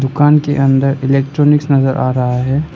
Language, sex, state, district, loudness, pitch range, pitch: Hindi, male, Arunachal Pradesh, Lower Dibang Valley, -13 LUFS, 135-145 Hz, 135 Hz